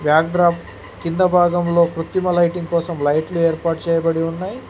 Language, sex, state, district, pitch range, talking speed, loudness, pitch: Telugu, male, Telangana, Mahabubabad, 165-175 Hz, 140 wpm, -18 LUFS, 170 Hz